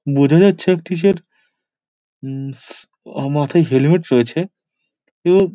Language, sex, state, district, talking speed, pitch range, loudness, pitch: Bengali, male, West Bengal, Dakshin Dinajpur, 85 wpm, 135-180 Hz, -16 LUFS, 165 Hz